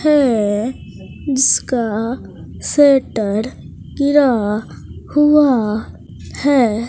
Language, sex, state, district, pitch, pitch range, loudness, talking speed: Hindi, female, Bihar, Katihar, 255 Hz, 220-285 Hz, -15 LUFS, 45 wpm